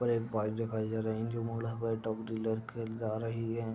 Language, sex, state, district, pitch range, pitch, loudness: Hindi, male, Uttar Pradesh, Deoria, 110-115 Hz, 115 Hz, -36 LUFS